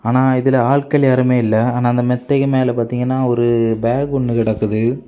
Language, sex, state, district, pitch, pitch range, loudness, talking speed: Tamil, male, Tamil Nadu, Kanyakumari, 125 Hz, 120-130 Hz, -16 LUFS, 165 wpm